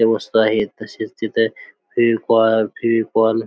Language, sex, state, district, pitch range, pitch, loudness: Marathi, male, Maharashtra, Aurangabad, 110-115 Hz, 110 Hz, -18 LUFS